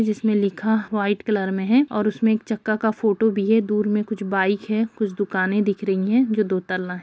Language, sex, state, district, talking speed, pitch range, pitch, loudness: Hindi, female, Bihar, Gaya, 230 wpm, 200-220 Hz, 210 Hz, -21 LUFS